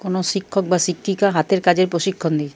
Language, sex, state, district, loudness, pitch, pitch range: Bengali, male, Jharkhand, Jamtara, -19 LUFS, 185 Hz, 175-195 Hz